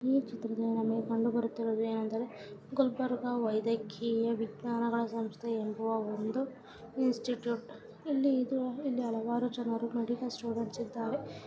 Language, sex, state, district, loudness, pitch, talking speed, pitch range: Kannada, female, Karnataka, Gulbarga, -34 LUFS, 230 Hz, 90 wpm, 225-245 Hz